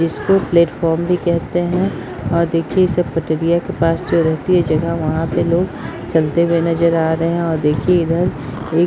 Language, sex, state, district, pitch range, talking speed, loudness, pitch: Hindi, female, Bihar, Purnia, 160-175 Hz, 185 wpm, -17 LUFS, 170 Hz